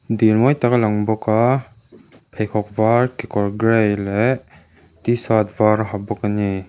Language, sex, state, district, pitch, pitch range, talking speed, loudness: Mizo, male, Mizoram, Aizawl, 110 Hz, 105-120 Hz, 170 wpm, -18 LUFS